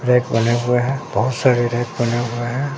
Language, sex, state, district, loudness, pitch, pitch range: Hindi, male, Bihar, Katihar, -19 LUFS, 120 Hz, 120-130 Hz